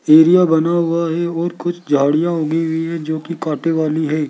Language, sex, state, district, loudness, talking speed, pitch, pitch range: Hindi, male, Rajasthan, Jaipur, -16 LUFS, 210 wpm, 165 Hz, 155-170 Hz